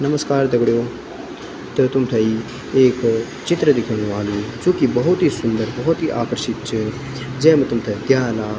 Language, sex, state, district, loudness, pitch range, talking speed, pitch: Garhwali, male, Uttarakhand, Tehri Garhwal, -19 LUFS, 115-135 Hz, 145 wpm, 120 Hz